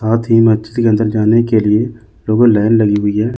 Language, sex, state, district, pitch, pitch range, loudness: Hindi, male, Chandigarh, Chandigarh, 110 Hz, 105-115 Hz, -12 LUFS